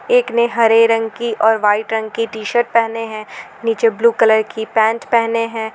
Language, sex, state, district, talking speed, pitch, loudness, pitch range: Hindi, female, Jharkhand, Garhwa, 200 wpm, 225 Hz, -16 LUFS, 220-235 Hz